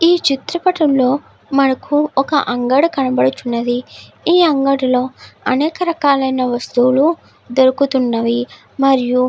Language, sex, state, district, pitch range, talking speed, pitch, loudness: Telugu, female, Andhra Pradesh, Guntur, 250-295 Hz, 105 wpm, 270 Hz, -15 LUFS